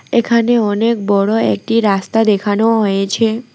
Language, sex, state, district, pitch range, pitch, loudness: Bengali, female, West Bengal, Alipurduar, 205-230 Hz, 220 Hz, -14 LUFS